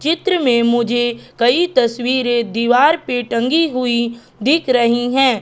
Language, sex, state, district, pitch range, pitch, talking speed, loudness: Hindi, female, Madhya Pradesh, Katni, 235-270 Hz, 245 Hz, 135 wpm, -16 LUFS